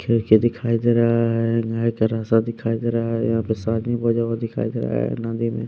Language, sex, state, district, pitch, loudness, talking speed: Hindi, male, Bihar, West Champaran, 115 Hz, -21 LUFS, 230 wpm